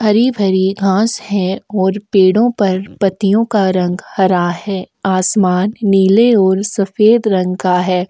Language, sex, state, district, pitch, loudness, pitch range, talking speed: Hindi, female, Maharashtra, Aurangabad, 195 Hz, -14 LUFS, 185-210 Hz, 140 wpm